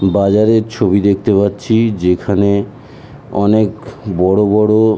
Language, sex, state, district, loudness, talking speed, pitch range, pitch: Bengali, male, West Bengal, North 24 Parganas, -13 LUFS, 110 wpm, 100-110 Hz, 105 Hz